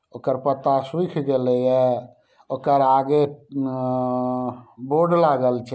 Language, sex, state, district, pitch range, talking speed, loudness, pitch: Maithili, male, Bihar, Samastipur, 125-145 Hz, 115 wpm, -21 LUFS, 135 Hz